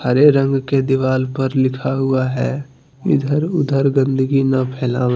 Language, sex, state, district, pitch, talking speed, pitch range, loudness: Hindi, male, Jharkhand, Deoghar, 135 Hz, 150 wpm, 130-140 Hz, -17 LUFS